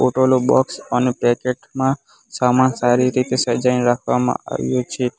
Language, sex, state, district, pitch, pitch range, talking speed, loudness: Gujarati, male, Gujarat, Valsad, 125 Hz, 120-130 Hz, 125 wpm, -18 LUFS